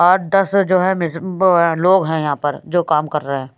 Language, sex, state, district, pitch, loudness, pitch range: Hindi, female, Haryana, Rohtak, 170 Hz, -16 LUFS, 150-185 Hz